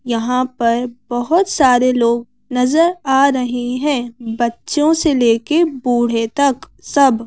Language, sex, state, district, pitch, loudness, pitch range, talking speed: Hindi, female, Madhya Pradesh, Bhopal, 250 Hz, -16 LUFS, 240-280 Hz, 105 wpm